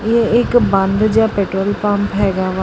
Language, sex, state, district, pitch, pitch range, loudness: Punjabi, female, Karnataka, Bangalore, 205 Hz, 195-220 Hz, -15 LUFS